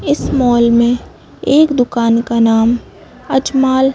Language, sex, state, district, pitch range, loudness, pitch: Hindi, female, Madhya Pradesh, Bhopal, 235-265 Hz, -13 LUFS, 240 Hz